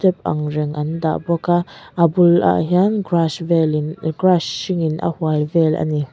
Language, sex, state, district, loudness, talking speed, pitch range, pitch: Mizo, female, Mizoram, Aizawl, -18 LUFS, 175 wpm, 150-175 Hz, 165 Hz